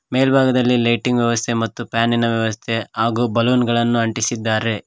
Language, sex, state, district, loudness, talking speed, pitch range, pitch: Kannada, male, Karnataka, Koppal, -18 LUFS, 125 wpm, 115-120 Hz, 120 Hz